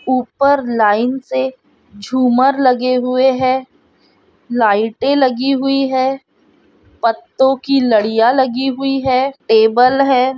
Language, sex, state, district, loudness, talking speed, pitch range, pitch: Hindi, female, Andhra Pradesh, Krishna, -14 LUFS, 110 wpm, 250-270 Hz, 260 Hz